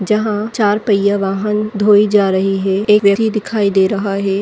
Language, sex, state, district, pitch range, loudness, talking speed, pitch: Hindi, female, Chhattisgarh, Rajnandgaon, 195-210 Hz, -14 LUFS, 190 wpm, 205 Hz